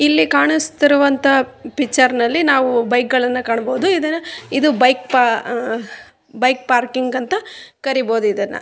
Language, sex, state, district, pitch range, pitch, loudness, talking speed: Kannada, female, Karnataka, Raichur, 245-285 Hz, 255 Hz, -16 LUFS, 105 wpm